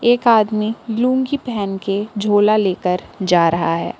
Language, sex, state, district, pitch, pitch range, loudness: Hindi, female, Jharkhand, Palamu, 210 Hz, 190-230 Hz, -17 LUFS